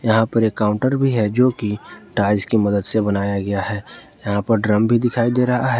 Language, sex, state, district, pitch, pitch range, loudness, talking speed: Hindi, male, Jharkhand, Ranchi, 110 Hz, 100-120 Hz, -19 LUFS, 230 wpm